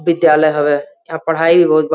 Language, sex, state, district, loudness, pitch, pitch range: Hindi, female, Uttar Pradesh, Gorakhpur, -13 LUFS, 155 Hz, 150-165 Hz